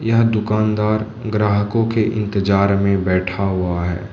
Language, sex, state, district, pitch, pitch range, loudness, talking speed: Hindi, male, Manipur, Imphal West, 105 Hz, 100-110 Hz, -18 LUFS, 130 wpm